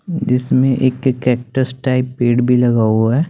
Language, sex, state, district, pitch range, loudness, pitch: Hindi, male, Chandigarh, Chandigarh, 125-130 Hz, -15 LUFS, 125 Hz